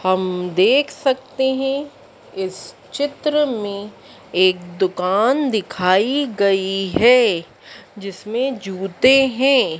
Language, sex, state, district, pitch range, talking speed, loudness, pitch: Hindi, female, Madhya Pradesh, Dhar, 185-270 Hz, 90 wpm, -18 LUFS, 210 Hz